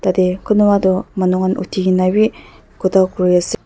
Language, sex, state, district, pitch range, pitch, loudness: Nagamese, female, Nagaland, Dimapur, 185-200 Hz, 185 Hz, -15 LUFS